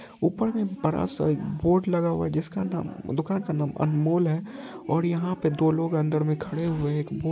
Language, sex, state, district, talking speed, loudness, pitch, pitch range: Hindi, male, Bihar, Purnia, 230 wpm, -26 LUFS, 165 Hz, 155-180 Hz